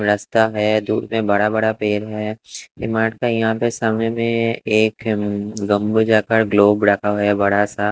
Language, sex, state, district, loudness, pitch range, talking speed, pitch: Hindi, male, Chhattisgarh, Raipur, -18 LUFS, 105-110 Hz, 190 wpm, 110 Hz